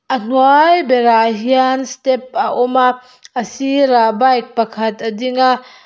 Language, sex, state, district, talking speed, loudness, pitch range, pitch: Mizo, female, Mizoram, Aizawl, 155 wpm, -14 LUFS, 235-260 Hz, 255 Hz